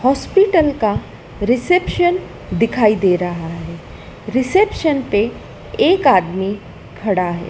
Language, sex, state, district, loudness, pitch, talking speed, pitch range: Hindi, female, Madhya Pradesh, Dhar, -16 LUFS, 225 Hz, 105 wpm, 185-300 Hz